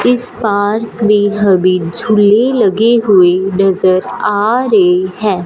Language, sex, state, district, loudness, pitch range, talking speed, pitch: Hindi, female, Punjab, Fazilka, -11 LUFS, 185-220 Hz, 120 wpm, 205 Hz